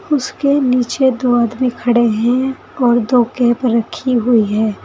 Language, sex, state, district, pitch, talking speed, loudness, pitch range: Hindi, female, Uttar Pradesh, Saharanpur, 245 Hz, 150 wpm, -15 LUFS, 235-260 Hz